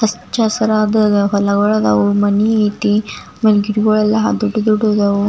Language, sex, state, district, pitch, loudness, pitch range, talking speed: Kannada, female, Karnataka, Belgaum, 215 Hz, -14 LUFS, 205-215 Hz, 125 wpm